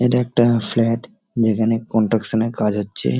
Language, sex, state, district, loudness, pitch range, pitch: Bengali, male, West Bengal, Dakshin Dinajpur, -19 LUFS, 110-120 Hz, 115 Hz